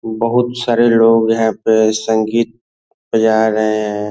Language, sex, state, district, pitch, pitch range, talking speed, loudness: Hindi, male, Bihar, Darbhanga, 110 Hz, 110-115 Hz, 145 wpm, -14 LUFS